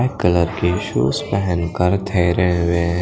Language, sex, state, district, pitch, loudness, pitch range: Hindi, male, Odisha, Khordha, 90 Hz, -18 LUFS, 85-90 Hz